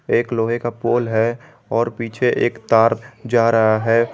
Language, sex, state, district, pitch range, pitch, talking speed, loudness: Hindi, male, Jharkhand, Garhwa, 115-120 Hz, 115 Hz, 175 wpm, -18 LUFS